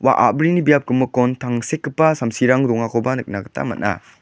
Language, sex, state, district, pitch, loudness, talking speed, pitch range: Garo, male, Meghalaya, West Garo Hills, 130 Hz, -18 LUFS, 140 wpm, 120-150 Hz